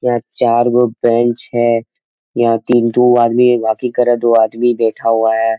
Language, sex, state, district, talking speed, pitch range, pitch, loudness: Hindi, male, Jharkhand, Sahebganj, 150 wpm, 115-120 Hz, 120 Hz, -13 LUFS